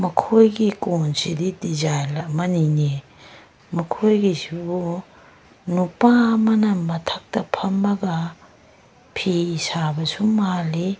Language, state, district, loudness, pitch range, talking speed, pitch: Manipuri, Manipur, Imphal West, -21 LUFS, 165-200 Hz, 65 wpm, 175 Hz